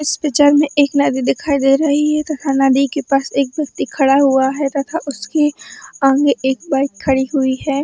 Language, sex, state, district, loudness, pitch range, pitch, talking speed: Hindi, female, Chhattisgarh, Bilaspur, -15 LUFS, 270-295 Hz, 280 Hz, 200 wpm